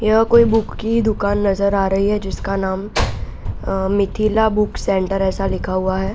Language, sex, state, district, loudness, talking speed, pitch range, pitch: Hindi, female, Bihar, Araria, -18 LUFS, 175 wpm, 190-215 Hz, 195 Hz